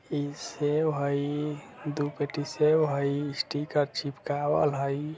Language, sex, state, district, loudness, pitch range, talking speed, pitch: Bajjika, male, Bihar, Vaishali, -29 LUFS, 140-150 Hz, 115 wpm, 145 Hz